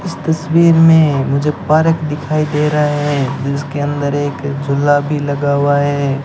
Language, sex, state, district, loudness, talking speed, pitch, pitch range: Hindi, male, Rajasthan, Bikaner, -14 LUFS, 165 wpm, 145 Hz, 140-155 Hz